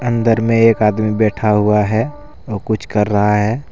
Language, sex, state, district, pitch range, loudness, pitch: Hindi, male, Jharkhand, Deoghar, 105-115 Hz, -15 LUFS, 110 Hz